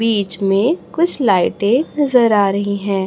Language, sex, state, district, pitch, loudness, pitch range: Hindi, female, Chhattisgarh, Raipur, 210 Hz, -16 LUFS, 200-260 Hz